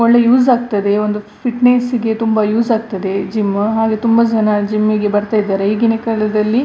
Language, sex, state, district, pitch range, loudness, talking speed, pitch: Kannada, female, Karnataka, Dakshina Kannada, 210-230 Hz, -14 LUFS, 170 wpm, 220 Hz